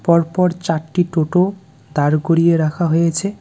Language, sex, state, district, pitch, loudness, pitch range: Bengali, male, West Bengal, Cooch Behar, 170 Hz, -17 LUFS, 160-180 Hz